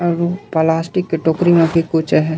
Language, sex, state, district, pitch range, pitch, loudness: Chhattisgarhi, male, Chhattisgarh, Raigarh, 160-175 Hz, 165 Hz, -16 LUFS